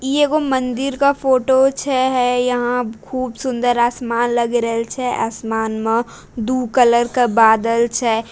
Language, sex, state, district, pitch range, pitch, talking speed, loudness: Hindi, female, Bihar, Bhagalpur, 230-260 Hz, 245 Hz, 150 wpm, -17 LUFS